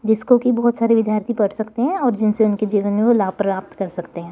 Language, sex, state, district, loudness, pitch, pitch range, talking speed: Hindi, female, Chandigarh, Chandigarh, -18 LUFS, 220 Hz, 205-235 Hz, 265 wpm